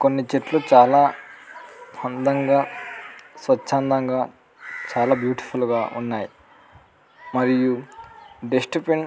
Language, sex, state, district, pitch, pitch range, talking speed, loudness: Telugu, male, Andhra Pradesh, Anantapur, 135 Hz, 125-155 Hz, 95 wpm, -21 LUFS